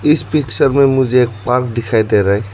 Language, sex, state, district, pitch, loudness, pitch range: Hindi, male, Arunachal Pradesh, Lower Dibang Valley, 125 Hz, -14 LUFS, 110-135 Hz